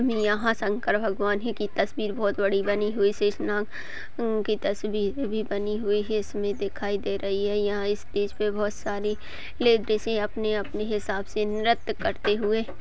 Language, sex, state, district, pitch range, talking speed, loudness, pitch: Hindi, female, Chhattisgarh, Balrampur, 205-215 Hz, 160 wpm, -27 LUFS, 210 Hz